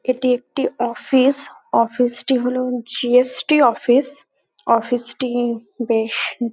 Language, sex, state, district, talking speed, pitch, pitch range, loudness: Bengali, female, West Bengal, North 24 Parganas, 120 wpm, 245 Hz, 240-260 Hz, -19 LUFS